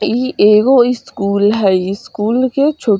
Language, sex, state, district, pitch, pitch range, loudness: Bajjika, female, Bihar, Vaishali, 220 Hz, 205-255 Hz, -13 LUFS